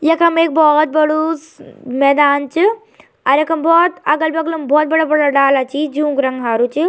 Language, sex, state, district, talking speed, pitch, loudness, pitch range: Garhwali, female, Uttarakhand, Tehri Garhwal, 165 wpm, 305 Hz, -14 LUFS, 280-325 Hz